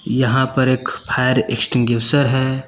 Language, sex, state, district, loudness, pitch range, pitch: Hindi, male, Uttar Pradesh, Lucknow, -17 LUFS, 125-130 Hz, 130 Hz